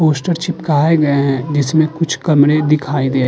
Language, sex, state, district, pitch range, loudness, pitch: Hindi, male, Uttar Pradesh, Jalaun, 145-160 Hz, -14 LUFS, 150 Hz